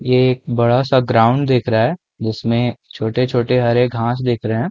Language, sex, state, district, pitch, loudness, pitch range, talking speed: Hindi, male, Chhattisgarh, Rajnandgaon, 120 Hz, -17 LUFS, 115-125 Hz, 190 wpm